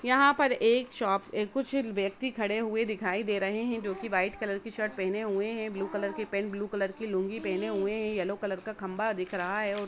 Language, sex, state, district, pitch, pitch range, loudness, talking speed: Hindi, female, Jharkhand, Jamtara, 210 Hz, 195-225 Hz, -31 LUFS, 250 wpm